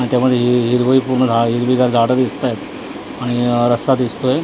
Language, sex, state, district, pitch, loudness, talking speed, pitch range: Marathi, male, Maharashtra, Mumbai Suburban, 125 Hz, -15 LUFS, 190 wpm, 120-130 Hz